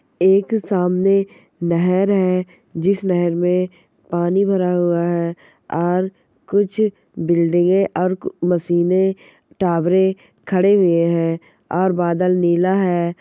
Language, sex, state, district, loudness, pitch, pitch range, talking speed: Hindi, male, Bihar, Sitamarhi, -18 LUFS, 180 Hz, 175-190 Hz, 110 wpm